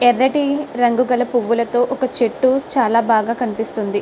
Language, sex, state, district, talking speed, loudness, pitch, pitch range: Telugu, female, Andhra Pradesh, Krishna, 135 wpm, -17 LUFS, 245 Hz, 230-260 Hz